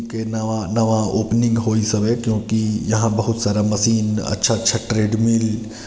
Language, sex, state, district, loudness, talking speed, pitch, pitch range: Hindi, male, Chhattisgarh, Sarguja, -19 LUFS, 165 wpm, 110 Hz, 110-115 Hz